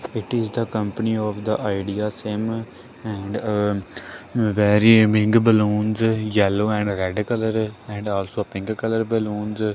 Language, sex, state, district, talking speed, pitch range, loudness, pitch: English, male, Punjab, Kapurthala, 130 wpm, 105-110 Hz, -21 LUFS, 105 Hz